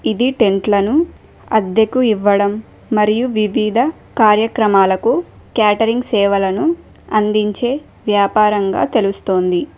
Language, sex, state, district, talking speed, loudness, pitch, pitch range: Telugu, female, Telangana, Mahabubabad, 75 wpm, -15 LUFS, 215 Hz, 200-230 Hz